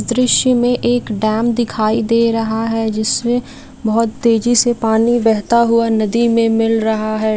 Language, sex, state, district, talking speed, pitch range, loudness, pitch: Hindi, female, Bihar, Jamui, 170 wpm, 220-240 Hz, -15 LUFS, 230 Hz